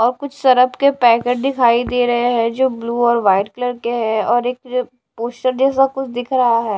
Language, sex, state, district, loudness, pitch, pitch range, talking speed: Hindi, female, Odisha, Sambalpur, -16 LUFS, 245 Hz, 235-255 Hz, 195 wpm